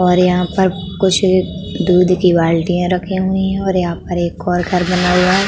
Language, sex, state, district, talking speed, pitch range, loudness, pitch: Hindi, female, Uttar Pradesh, Budaun, 210 wpm, 180-185 Hz, -15 LUFS, 180 Hz